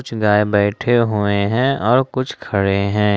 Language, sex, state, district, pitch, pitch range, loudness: Hindi, male, Jharkhand, Ranchi, 105 Hz, 100-125 Hz, -17 LUFS